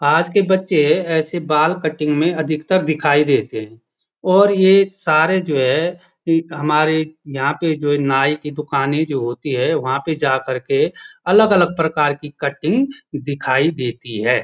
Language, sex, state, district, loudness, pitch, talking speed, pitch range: Hindi, male, Uttarakhand, Uttarkashi, -17 LUFS, 155 Hz, 175 wpm, 145-175 Hz